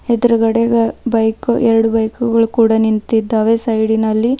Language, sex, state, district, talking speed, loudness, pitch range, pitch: Kannada, female, Karnataka, Bidar, 95 wpm, -14 LUFS, 220-235 Hz, 225 Hz